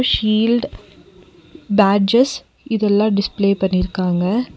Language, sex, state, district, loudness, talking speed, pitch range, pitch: Tamil, female, Tamil Nadu, Nilgiris, -17 LUFS, 65 wpm, 195-235 Hz, 205 Hz